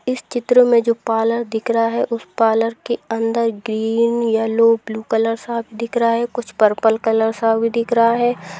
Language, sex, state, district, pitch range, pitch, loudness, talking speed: Hindi, female, Bihar, Sitamarhi, 225-235 Hz, 230 Hz, -18 LUFS, 190 wpm